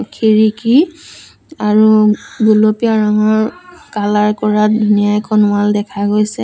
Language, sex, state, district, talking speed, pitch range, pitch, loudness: Assamese, female, Assam, Sonitpur, 105 wpm, 210-220 Hz, 215 Hz, -13 LUFS